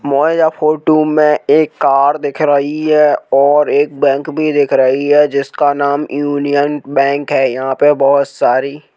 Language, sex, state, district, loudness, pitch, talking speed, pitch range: Hindi, male, Madhya Pradesh, Bhopal, -12 LUFS, 145 Hz, 160 wpm, 140-150 Hz